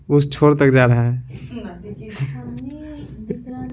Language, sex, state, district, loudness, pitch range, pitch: Hindi, male, Bihar, Patna, -17 LUFS, 125-195 Hz, 140 Hz